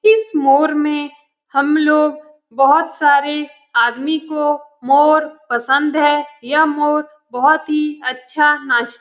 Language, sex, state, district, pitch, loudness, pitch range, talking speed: Hindi, female, Bihar, Lakhisarai, 295 Hz, -15 LUFS, 280-300 Hz, 120 wpm